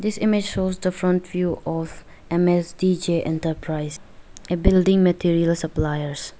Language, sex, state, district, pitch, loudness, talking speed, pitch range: English, female, Arunachal Pradesh, Lower Dibang Valley, 175 Hz, -22 LUFS, 120 wpm, 165-185 Hz